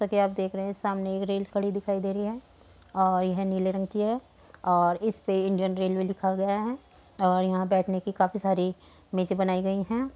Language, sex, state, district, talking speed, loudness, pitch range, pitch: Hindi, female, Uttar Pradesh, Muzaffarnagar, 220 wpm, -27 LUFS, 190-200 Hz, 195 Hz